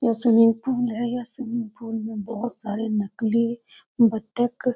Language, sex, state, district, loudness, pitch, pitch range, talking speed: Hindi, female, Bihar, Saran, -23 LUFS, 230 Hz, 225-240 Hz, 165 wpm